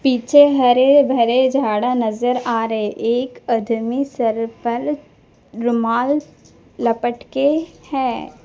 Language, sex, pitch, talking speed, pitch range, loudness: Hindi, female, 245 Hz, 105 wpm, 230-270 Hz, -18 LUFS